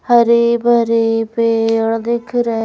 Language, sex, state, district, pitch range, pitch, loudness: Hindi, female, Madhya Pradesh, Bhopal, 225-235 Hz, 230 Hz, -14 LUFS